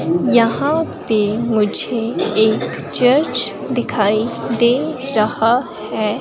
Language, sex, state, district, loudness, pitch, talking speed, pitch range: Hindi, female, Himachal Pradesh, Shimla, -16 LUFS, 230 Hz, 85 wpm, 215-245 Hz